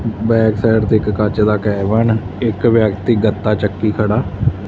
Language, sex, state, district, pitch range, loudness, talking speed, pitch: Punjabi, male, Punjab, Fazilka, 105-115 Hz, -15 LUFS, 155 wpm, 110 Hz